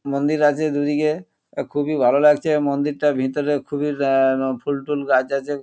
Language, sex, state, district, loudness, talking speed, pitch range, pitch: Bengali, male, West Bengal, North 24 Parganas, -20 LUFS, 150 wpm, 140-150 Hz, 145 Hz